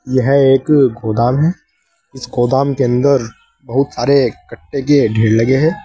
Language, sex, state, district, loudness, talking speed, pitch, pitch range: Hindi, male, Uttar Pradesh, Saharanpur, -14 LUFS, 155 wpm, 135 Hz, 120-140 Hz